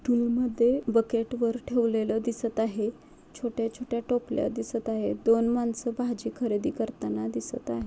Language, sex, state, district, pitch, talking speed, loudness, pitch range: Marathi, female, Maharashtra, Nagpur, 230 Hz, 135 wpm, -28 LUFS, 225-240 Hz